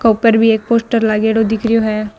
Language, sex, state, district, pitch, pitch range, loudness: Marwari, female, Rajasthan, Nagaur, 225 Hz, 220-230 Hz, -14 LUFS